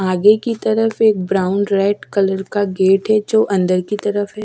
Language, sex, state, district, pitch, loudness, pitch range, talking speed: Hindi, female, Chhattisgarh, Raipur, 205 Hz, -16 LUFS, 195-215 Hz, 205 wpm